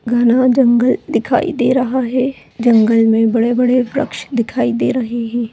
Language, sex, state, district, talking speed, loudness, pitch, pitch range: Kumaoni, female, Uttarakhand, Tehri Garhwal, 165 wpm, -15 LUFS, 240 Hz, 230-255 Hz